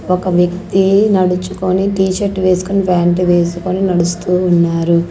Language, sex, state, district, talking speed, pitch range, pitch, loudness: Telugu, female, Andhra Pradesh, Sri Satya Sai, 105 wpm, 175-190 Hz, 180 Hz, -14 LUFS